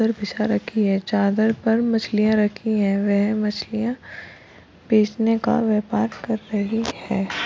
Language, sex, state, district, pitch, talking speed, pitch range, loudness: Hindi, female, Maharashtra, Chandrapur, 215 Hz, 130 wpm, 210-225 Hz, -21 LUFS